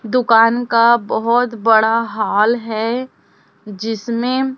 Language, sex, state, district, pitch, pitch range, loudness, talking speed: Hindi, female, Chhattisgarh, Raipur, 230 Hz, 220-240 Hz, -15 LUFS, 90 wpm